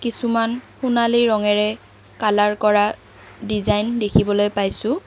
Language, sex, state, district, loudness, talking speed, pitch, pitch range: Assamese, female, Assam, Kamrup Metropolitan, -19 LUFS, 95 wpm, 215 Hz, 205-235 Hz